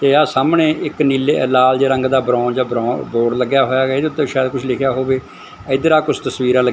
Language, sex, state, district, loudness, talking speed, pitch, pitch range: Punjabi, male, Punjab, Fazilka, -16 LUFS, 230 wpm, 130 Hz, 125-140 Hz